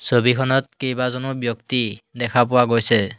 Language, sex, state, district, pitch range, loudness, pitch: Assamese, male, Assam, Hailakandi, 120-130 Hz, -20 LUFS, 125 Hz